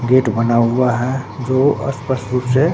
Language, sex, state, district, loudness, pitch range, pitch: Hindi, male, Bihar, Katihar, -17 LUFS, 120-130 Hz, 130 Hz